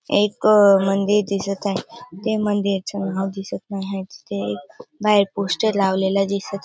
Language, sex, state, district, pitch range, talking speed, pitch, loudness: Marathi, female, Maharashtra, Dhule, 195-205 Hz, 145 wpm, 195 Hz, -20 LUFS